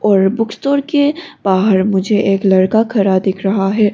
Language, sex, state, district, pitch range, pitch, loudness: Hindi, female, Arunachal Pradesh, Longding, 195-225 Hz, 200 Hz, -14 LUFS